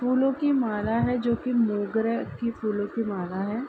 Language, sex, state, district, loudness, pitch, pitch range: Hindi, female, Uttar Pradesh, Ghazipur, -26 LUFS, 230 Hz, 210-245 Hz